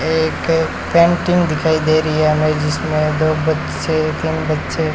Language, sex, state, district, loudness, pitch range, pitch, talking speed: Hindi, male, Rajasthan, Bikaner, -16 LUFS, 155-160 Hz, 155 Hz, 145 wpm